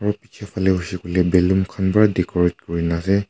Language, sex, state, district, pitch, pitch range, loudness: Nagamese, male, Nagaland, Kohima, 95 Hz, 90-100 Hz, -19 LUFS